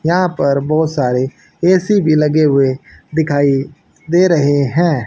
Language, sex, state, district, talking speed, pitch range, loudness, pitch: Hindi, male, Haryana, Charkhi Dadri, 140 wpm, 140-170 Hz, -14 LUFS, 155 Hz